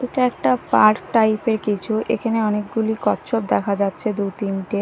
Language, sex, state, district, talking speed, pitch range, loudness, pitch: Bengali, female, Odisha, Nuapada, 150 wpm, 200-225 Hz, -20 LUFS, 215 Hz